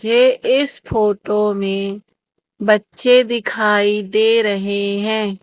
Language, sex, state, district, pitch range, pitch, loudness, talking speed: Hindi, female, Madhya Pradesh, Umaria, 200-230 Hz, 210 Hz, -17 LUFS, 100 wpm